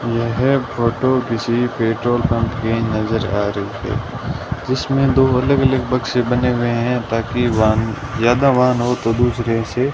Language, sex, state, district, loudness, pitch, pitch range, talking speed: Hindi, male, Rajasthan, Bikaner, -18 LUFS, 120 Hz, 115-125 Hz, 165 wpm